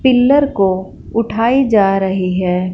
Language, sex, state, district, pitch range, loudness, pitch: Hindi, female, Punjab, Fazilka, 185-245 Hz, -14 LUFS, 200 Hz